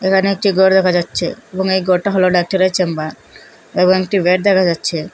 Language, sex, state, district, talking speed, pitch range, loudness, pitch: Bengali, female, Assam, Hailakandi, 185 wpm, 180-190 Hz, -15 LUFS, 185 Hz